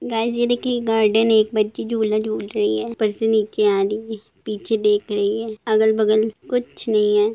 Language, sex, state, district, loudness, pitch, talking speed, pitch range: Hindi, female, Jharkhand, Jamtara, -20 LUFS, 215 Hz, 180 wpm, 210-225 Hz